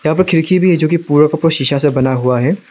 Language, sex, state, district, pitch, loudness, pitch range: Hindi, male, Arunachal Pradesh, Lower Dibang Valley, 155 Hz, -13 LUFS, 140-170 Hz